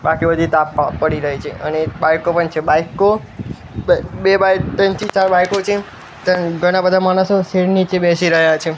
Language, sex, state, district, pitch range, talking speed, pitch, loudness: Gujarati, male, Gujarat, Gandhinagar, 160-190 Hz, 190 wpm, 175 Hz, -15 LUFS